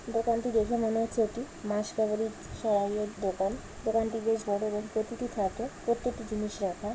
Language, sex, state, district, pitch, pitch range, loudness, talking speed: Bengali, female, West Bengal, Jalpaiguri, 220 Hz, 210-230 Hz, -31 LUFS, 145 wpm